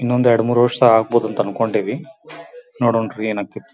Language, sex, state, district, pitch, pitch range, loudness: Kannada, male, Karnataka, Belgaum, 120 Hz, 115-140 Hz, -17 LUFS